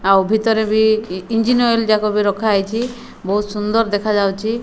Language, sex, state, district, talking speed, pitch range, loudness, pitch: Odia, female, Odisha, Malkangiri, 170 wpm, 205-225 Hz, -17 LUFS, 215 Hz